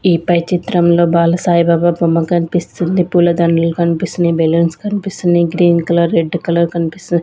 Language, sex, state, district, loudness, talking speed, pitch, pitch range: Telugu, female, Andhra Pradesh, Sri Satya Sai, -14 LUFS, 140 wpm, 170 Hz, 170-175 Hz